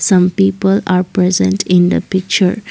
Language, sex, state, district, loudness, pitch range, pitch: English, female, Assam, Kamrup Metropolitan, -13 LUFS, 180-195 Hz, 185 Hz